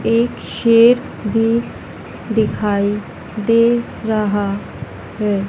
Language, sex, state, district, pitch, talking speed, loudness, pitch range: Hindi, female, Madhya Pradesh, Dhar, 220 Hz, 75 wpm, -17 LUFS, 205-230 Hz